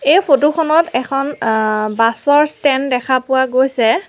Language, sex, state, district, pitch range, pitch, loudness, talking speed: Assamese, female, Assam, Sonitpur, 235-290 Hz, 265 Hz, -14 LUFS, 145 wpm